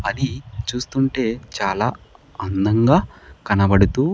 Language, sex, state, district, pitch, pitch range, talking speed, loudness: Telugu, male, Andhra Pradesh, Sri Satya Sai, 115 Hz, 100-130 Hz, 70 wpm, -20 LUFS